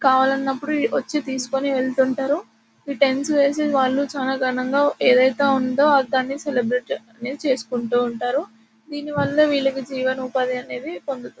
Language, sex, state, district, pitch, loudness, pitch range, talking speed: Telugu, female, Telangana, Nalgonda, 265 Hz, -21 LUFS, 255-280 Hz, 115 wpm